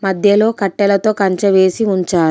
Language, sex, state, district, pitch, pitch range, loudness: Telugu, female, Telangana, Komaram Bheem, 195 Hz, 190-205 Hz, -14 LUFS